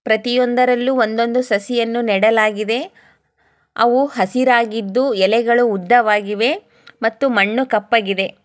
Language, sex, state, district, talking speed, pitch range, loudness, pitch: Kannada, female, Karnataka, Chamarajanagar, 80 wpm, 215-250 Hz, -16 LUFS, 235 Hz